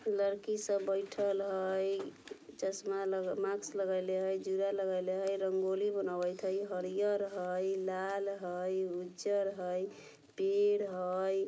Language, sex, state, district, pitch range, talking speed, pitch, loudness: Bajjika, female, Bihar, Vaishali, 185-200 Hz, 125 wpm, 195 Hz, -35 LUFS